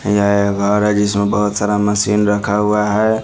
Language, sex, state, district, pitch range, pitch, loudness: Hindi, male, Haryana, Charkhi Dadri, 100-105 Hz, 105 Hz, -15 LUFS